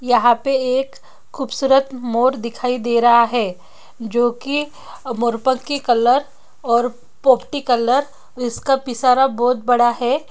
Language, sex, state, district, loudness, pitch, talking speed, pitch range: Hindi, female, Chhattisgarh, Sukma, -18 LUFS, 250 Hz, 130 wpm, 240-270 Hz